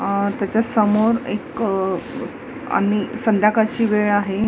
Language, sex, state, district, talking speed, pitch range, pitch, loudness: Marathi, female, Maharashtra, Mumbai Suburban, 95 wpm, 200-225 Hz, 210 Hz, -19 LUFS